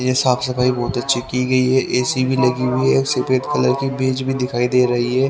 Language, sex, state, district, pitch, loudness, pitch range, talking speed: Hindi, male, Haryana, Rohtak, 125 Hz, -18 LUFS, 125-130 Hz, 250 wpm